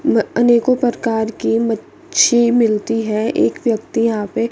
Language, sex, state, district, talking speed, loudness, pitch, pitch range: Hindi, female, Chandigarh, Chandigarh, 135 wpm, -16 LUFS, 230 Hz, 225-240 Hz